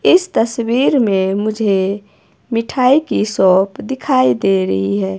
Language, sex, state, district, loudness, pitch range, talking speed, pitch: Hindi, female, Himachal Pradesh, Shimla, -15 LUFS, 190-250 Hz, 125 wpm, 210 Hz